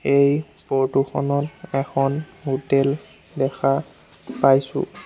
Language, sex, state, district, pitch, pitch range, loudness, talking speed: Assamese, male, Assam, Sonitpur, 140 Hz, 135-140 Hz, -22 LUFS, 85 wpm